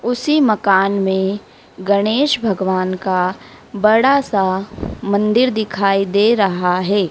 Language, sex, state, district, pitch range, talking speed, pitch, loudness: Hindi, female, Madhya Pradesh, Dhar, 190-220 Hz, 110 wpm, 200 Hz, -16 LUFS